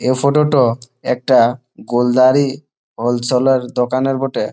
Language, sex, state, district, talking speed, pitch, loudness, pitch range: Bengali, male, West Bengal, Malda, 105 wpm, 130 Hz, -15 LUFS, 120-135 Hz